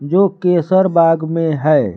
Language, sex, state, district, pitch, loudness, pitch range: Hindi, male, Uttar Pradesh, Lucknow, 170 Hz, -14 LUFS, 160-185 Hz